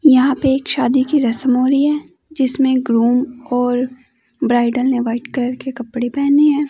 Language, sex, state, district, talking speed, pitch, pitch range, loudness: Hindi, female, Chandigarh, Chandigarh, 180 wpm, 255 Hz, 245-275 Hz, -16 LUFS